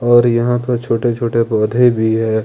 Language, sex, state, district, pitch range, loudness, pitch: Hindi, male, Jharkhand, Ranchi, 110-120 Hz, -15 LUFS, 115 Hz